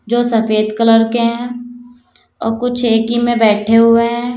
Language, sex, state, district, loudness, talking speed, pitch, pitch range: Hindi, female, Uttar Pradesh, Lalitpur, -13 LUFS, 180 wpm, 230 Hz, 225-240 Hz